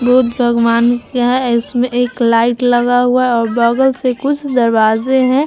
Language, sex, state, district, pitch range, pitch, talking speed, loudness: Hindi, female, Bihar, Vaishali, 235-255 Hz, 245 Hz, 185 wpm, -13 LUFS